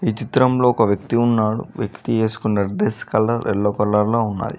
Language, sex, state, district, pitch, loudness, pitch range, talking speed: Telugu, male, Telangana, Mahabubabad, 110 Hz, -19 LUFS, 105-115 Hz, 170 wpm